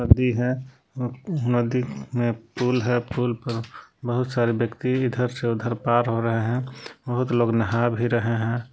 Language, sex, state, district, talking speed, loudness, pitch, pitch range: Hindi, male, Jharkhand, Palamu, 165 wpm, -24 LUFS, 120 Hz, 115-125 Hz